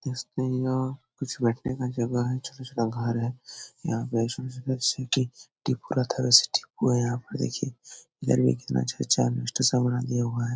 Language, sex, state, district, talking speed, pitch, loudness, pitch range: Hindi, male, Bihar, Jahanabad, 165 wpm, 125 Hz, -27 LUFS, 115-130 Hz